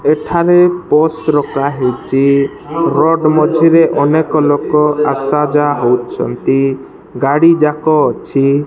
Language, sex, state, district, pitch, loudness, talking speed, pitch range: Odia, male, Odisha, Malkangiri, 150 Hz, -12 LUFS, 95 wpm, 140-160 Hz